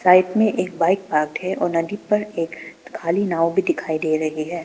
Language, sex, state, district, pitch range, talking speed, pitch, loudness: Hindi, female, Arunachal Pradesh, Papum Pare, 160-195 Hz, 220 wpm, 170 Hz, -21 LUFS